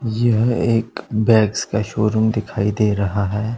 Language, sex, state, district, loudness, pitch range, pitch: Hindi, male, Punjab, Pathankot, -18 LUFS, 105-115 Hz, 110 Hz